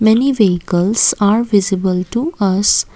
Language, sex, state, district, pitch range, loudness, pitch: English, female, Assam, Kamrup Metropolitan, 185-220 Hz, -14 LUFS, 200 Hz